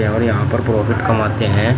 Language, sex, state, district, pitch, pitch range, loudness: Hindi, male, Uttar Pradesh, Shamli, 115 Hz, 110-115 Hz, -16 LUFS